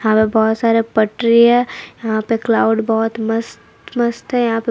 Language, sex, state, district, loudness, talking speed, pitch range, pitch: Hindi, female, Jharkhand, Palamu, -16 LUFS, 190 wpm, 225-230 Hz, 230 Hz